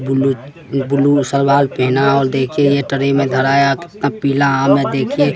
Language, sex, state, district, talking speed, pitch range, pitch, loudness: Hindi, male, Bihar, West Champaran, 55 wpm, 135-140 Hz, 140 Hz, -15 LUFS